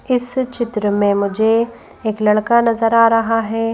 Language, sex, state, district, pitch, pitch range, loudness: Hindi, female, Madhya Pradesh, Bhopal, 225 Hz, 215-235 Hz, -16 LUFS